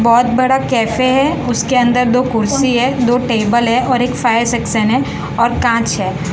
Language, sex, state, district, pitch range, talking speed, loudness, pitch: Hindi, female, Gujarat, Valsad, 230-255 Hz, 190 wpm, -14 LUFS, 240 Hz